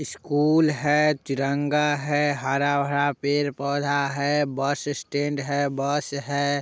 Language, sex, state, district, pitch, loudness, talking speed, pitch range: Hindi, male, Bihar, Muzaffarpur, 145 Hz, -24 LUFS, 120 wpm, 140-145 Hz